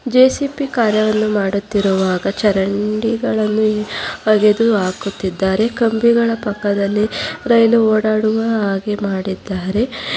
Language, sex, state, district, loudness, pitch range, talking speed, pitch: Kannada, female, Karnataka, Bangalore, -16 LUFS, 200-230 Hz, 70 wpm, 215 Hz